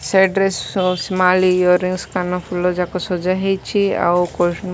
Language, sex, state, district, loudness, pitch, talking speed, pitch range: Odia, female, Odisha, Malkangiri, -17 LUFS, 180 Hz, 150 wpm, 180-190 Hz